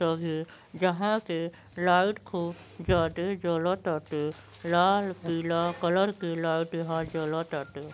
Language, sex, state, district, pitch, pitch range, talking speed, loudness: Bhojpuri, female, Uttar Pradesh, Gorakhpur, 170 Hz, 165-180 Hz, 100 wpm, -29 LUFS